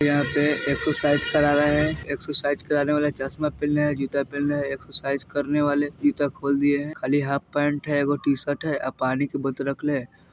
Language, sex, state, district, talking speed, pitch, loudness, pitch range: Bajjika, male, Bihar, Vaishali, 205 wpm, 145 Hz, -24 LUFS, 140-145 Hz